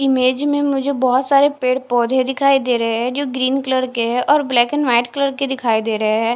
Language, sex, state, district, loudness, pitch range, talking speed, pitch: Hindi, female, Punjab, Fazilka, -17 LUFS, 240-275 Hz, 245 wpm, 260 Hz